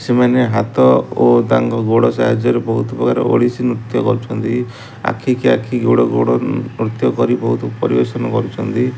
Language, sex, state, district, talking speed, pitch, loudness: Odia, male, Odisha, Khordha, 135 wpm, 110 Hz, -15 LUFS